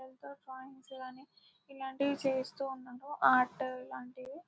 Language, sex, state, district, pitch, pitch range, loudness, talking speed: Telugu, male, Telangana, Nalgonda, 265 Hz, 255-275 Hz, -35 LUFS, 80 wpm